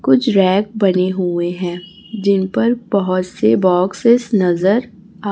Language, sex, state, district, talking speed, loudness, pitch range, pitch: Hindi, female, Chhattisgarh, Raipur, 135 wpm, -16 LUFS, 180-210 Hz, 190 Hz